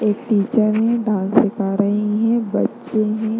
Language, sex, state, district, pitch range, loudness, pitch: Hindi, female, Bihar, Darbhanga, 205-225 Hz, -18 LUFS, 215 Hz